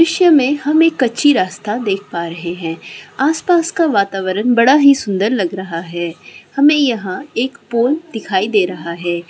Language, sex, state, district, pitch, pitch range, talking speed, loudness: Hindi, female, Chhattisgarh, Raigarh, 225 Hz, 185-285 Hz, 175 wpm, -15 LUFS